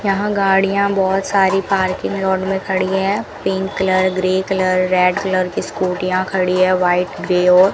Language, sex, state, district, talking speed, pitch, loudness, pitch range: Hindi, female, Rajasthan, Bikaner, 180 wpm, 190 Hz, -17 LUFS, 185-195 Hz